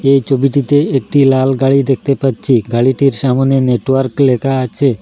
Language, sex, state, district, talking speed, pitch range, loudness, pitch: Bengali, male, Assam, Hailakandi, 145 wpm, 130-140 Hz, -13 LUFS, 135 Hz